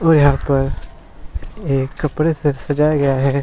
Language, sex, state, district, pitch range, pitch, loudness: Hindi, male, Chhattisgarh, Bilaspur, 135-150 Hz, 145 Hz, -17 LUFS